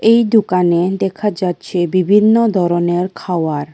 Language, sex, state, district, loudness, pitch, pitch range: Bengali, female, Tripura, West Tripura, -15 LUFS, 185 Hz, 175-210 Hz